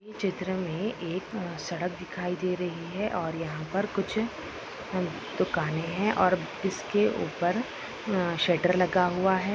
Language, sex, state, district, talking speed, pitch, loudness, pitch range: Hindi, female, Rajasthan, Nagaur, 130 wpm, 185 Hz, -29 LUFS, 175-200 Hz